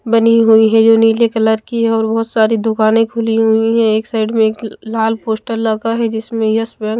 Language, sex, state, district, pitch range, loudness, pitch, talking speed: Hindi, female, Maharashtra, Mumbai Suburban, 220-230 Hz, -13 LUFS, 225 Hz, 215 wpm